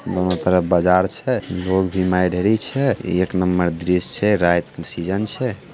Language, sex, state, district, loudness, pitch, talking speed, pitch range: Hindi, male, Bihar, Begusarai, -19 LUFS, 90 Hz, 165 wpm, 90-105 Hz